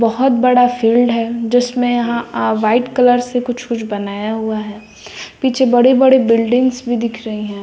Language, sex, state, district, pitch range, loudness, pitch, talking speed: Hindi, female, Bihar, West Champaran, 225-245 Hz, -15 LUFS, 240 Hz, 180 wpm